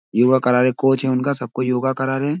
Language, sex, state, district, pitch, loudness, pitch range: Hindi, male, Uttar Pradesh, Ghazipur, 130 Hz, -18 LUFS, 125-135 Hz